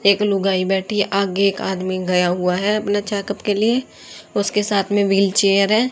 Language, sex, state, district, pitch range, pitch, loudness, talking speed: Hindi, female, Haryana, Jhajjar, 195-205 Hz, 200 Hz, -18 LUFS, 180 wpm